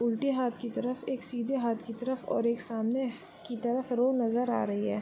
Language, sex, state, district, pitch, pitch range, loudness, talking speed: Hindi, female, Bihar, Gopalganj, 240 Hz, 235-255 Hz, -31 LUFS, 240 wpm